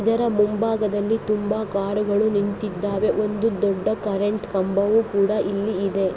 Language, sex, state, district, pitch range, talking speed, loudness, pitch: Kannada, female, Karnataka, Raichur, 200-215 Hz, 115 wpm, -22 LUFS, 210 Hz